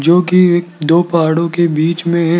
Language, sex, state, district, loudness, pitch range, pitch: Hindi, male, Rajasthan, Jaipur, -13 LUFS, 165-175 Hz, 170 Hz